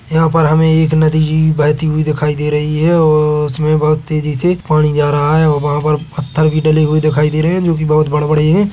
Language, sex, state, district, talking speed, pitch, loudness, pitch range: Hindi, male, Chhattisgarh, Bilaspur, 260 wpm, 155 Hz, -13 LUFS, 150-155 Hz